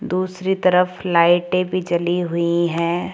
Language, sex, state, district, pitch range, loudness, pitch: Hindi, female, Rajasthan, Jaipur, 170-185 Hz, -19 LUFS, 180 Hz